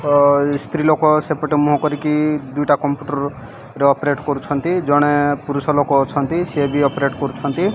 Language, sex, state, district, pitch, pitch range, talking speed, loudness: Odia, male, Odisha, Malkangiri, 145 Hz, 140-150 Hz, 140 wpm, -17 LUFS